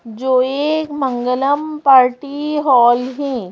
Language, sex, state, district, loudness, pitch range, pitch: Hindi, female, Madhya Pradesh, Bhopal, -15 LUFS, 250-290 Hz, 270 Hz